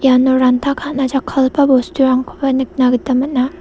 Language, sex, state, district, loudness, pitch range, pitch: Garo, female, Meghalaya, South Garo Hills, -15 LUFS, 255-275 Hz, 265 Hz